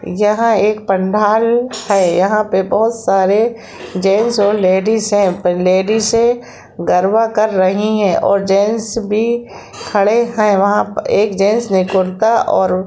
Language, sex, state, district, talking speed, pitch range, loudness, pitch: Hindi, female, Jharkhand, Jamtara, 130 wpm, 195-225 Hz, -14 LUFS, 210 Hz